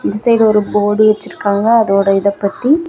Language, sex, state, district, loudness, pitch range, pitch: Tamil, female, Tamil Nadu, Namakkal, -13 LUFS, 200-225 Hz, 210 Hz